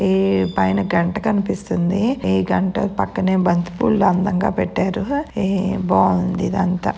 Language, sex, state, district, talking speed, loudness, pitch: Telugu, female, Karnataka, Raichur, 110 wpm, -19 LUFS, 185 Hz